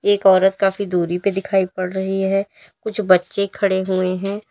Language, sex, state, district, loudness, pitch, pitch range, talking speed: Hindi, female, Uttar Pradesh, Lalitpur, -19 LUFS, 195 Hz, 185-200 Hz, 185 wpm